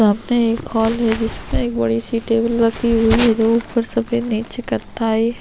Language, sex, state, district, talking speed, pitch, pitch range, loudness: Hindi, female, Chhattisgarh, Sukma, 200 wpm, 230 Hz, 225-235 Hz, -18 LUFS